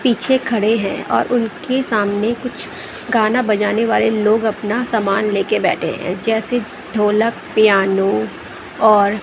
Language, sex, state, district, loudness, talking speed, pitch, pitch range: Hindi, female, Bihar, West Champaran, -17 LUFS, 130 wpm, 220 Hz, 210-230 Hz